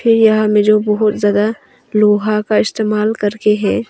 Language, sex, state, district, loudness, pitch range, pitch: Hindi, female, Arunachal Pradesh, Longding, -14 LUFS, 210-215 Hz, 215 Hz